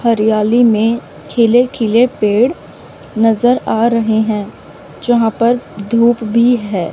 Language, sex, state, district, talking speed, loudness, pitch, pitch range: Hindi, female, Chandigarh, Chandigarh, 120 wpm, -13 LUFS, 230 Hz, 220-240 Hz